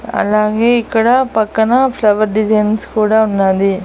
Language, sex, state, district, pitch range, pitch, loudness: Telugu, female, Andhra Pradesh, Annamaya, 210-225 Hz, 215 Hz, -13 LUFS